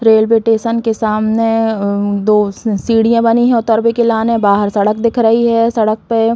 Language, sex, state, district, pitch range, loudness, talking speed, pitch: Bundeli, female, Uttar Pradesh, Hamirpur, 215-230 Hz, -13 LUFS, 200 wpm, 225 Hz